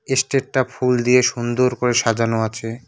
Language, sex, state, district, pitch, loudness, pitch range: Bengali, male, West Bengal, Cooch Behar, 125 Hz, -19 LUFS, 115-130 Hz